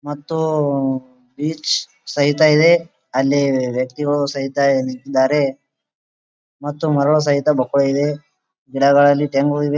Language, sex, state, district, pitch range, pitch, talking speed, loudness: Kannada, male, Karnataka, Gulbarga, 135-150 Hz, 140 Hz, 100 wpm, -17 LUFS